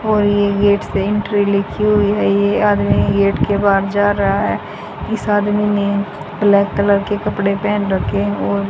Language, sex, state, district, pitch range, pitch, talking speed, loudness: Hindi, female, Haryana, Jhajjar, 200-205 Hz, 200 Hz, 185 wpm, -16 LUFS